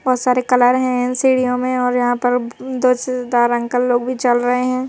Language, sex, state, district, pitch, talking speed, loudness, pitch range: Hindi, female, Madhya Pradesh, Bhopal, 250 Hz, 235 wpm, -17 LUFS, 245-255 Hz